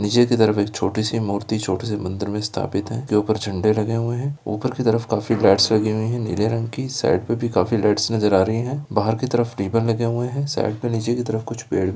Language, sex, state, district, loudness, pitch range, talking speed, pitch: Hindi, male, Bihar, Gaya, -21 LUFS, 105-115 Hz, 270 wpm, 110 Hz